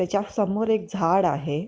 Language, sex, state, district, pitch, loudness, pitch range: Marathi, female, Maharashtra, Pune, 200 Hz, -24 LUFS, 170-205 Hz